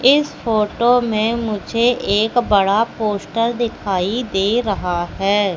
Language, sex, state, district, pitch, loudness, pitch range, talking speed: Hindi, female, Madhya Pradesh, Katni, 220 Hz, -18 LUFS, 200-235 Hz, 120 wpm